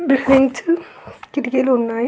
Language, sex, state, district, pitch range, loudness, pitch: Telugu, female, Andhra Pradesh, Krishna, 250-285 Hz, -17 LUFS, 270 Hz